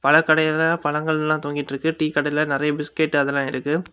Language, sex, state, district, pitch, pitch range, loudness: Tamil, male, Tamil Nadu, Kanyakumari, 150 Hz, 145-155 Hz, -21 LUFS